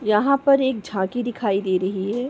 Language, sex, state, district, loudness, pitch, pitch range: Hindi, female, Uttar Pradesh, Ghazipur, -21 LUFS, 220 Hz, 195-260 Hz